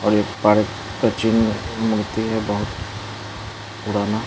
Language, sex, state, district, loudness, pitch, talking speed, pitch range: Hindi, male, Bihar, East Champaran, -21 LUFS, 105 Hz, 125 wpm, 105-110 Hz